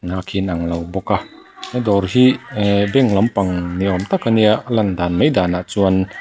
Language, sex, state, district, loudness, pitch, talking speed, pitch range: Mizo, male, Mizoram, Aizawl, -17 LUFS, 100 Hz, 215 wpm, 90-110 Hz